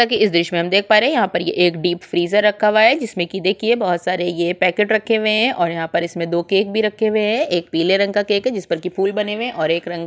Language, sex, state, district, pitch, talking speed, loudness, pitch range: Hindi, female, Chhattisgarh, Sukma, 195 Hz, 325 wpm, -17 LUFS, 175-215 Hz